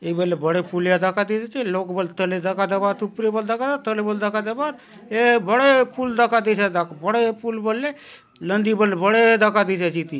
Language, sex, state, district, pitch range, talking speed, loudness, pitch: Halbi, male, Chhattisgarh, Bastar, 185-230 Hz, 210 wpm, -20 LUFS, 210 Hz